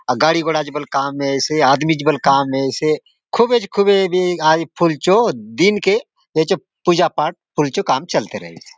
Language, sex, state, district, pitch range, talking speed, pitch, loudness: Halbi, male, Chhattisgarh, Bastar, 150-195 Hz, 200 wpm, 160 Hz, -17 LUFS